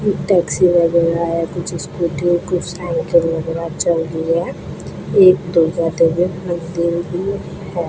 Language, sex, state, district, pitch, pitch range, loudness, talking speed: Hindi, female, Rajasthan, Bikaner, 170 Hz, 165-180 Hz, -17 LUFS, 90 wpm